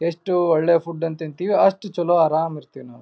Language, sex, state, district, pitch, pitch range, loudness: Kannada, male, Karnataka, Raichur, 165 Hz, 160-175 Hz, -20 LUFS